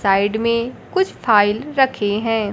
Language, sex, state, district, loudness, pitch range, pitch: Hindi, male, Bihar, Kaimur, -18 LUFS, 205-250 Hz, 225 Hz